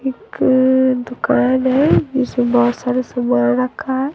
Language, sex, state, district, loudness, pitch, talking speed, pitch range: Hindi, female, Bihar, West Champaran, -16 LUFS, 255 Hz, 130 wpm, 245-260 Hz